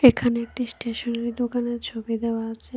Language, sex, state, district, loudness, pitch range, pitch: Bengali, female, Tripura, West Tripura, -26 LUFS, 230-245 Hz, 235 Hz